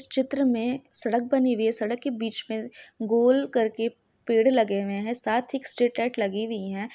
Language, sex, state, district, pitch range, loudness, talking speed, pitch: Hindi, female, Jharkhand, Sahebganj, 220-250 Hz, -25 LUFS, 205 wpm, 235 Hz